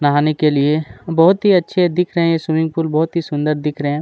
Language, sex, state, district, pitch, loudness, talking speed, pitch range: Hindi, male, Chhattisgarh, Kabirdham, 160 Hz, -16 LUFS, 270 wpm, 150-170 Hz